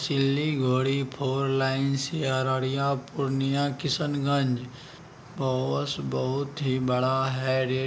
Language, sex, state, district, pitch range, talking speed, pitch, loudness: Hindi, male, Bihar, Araria, 130-140 Hz, 90 wpm, 135 Hz, -27 LUFS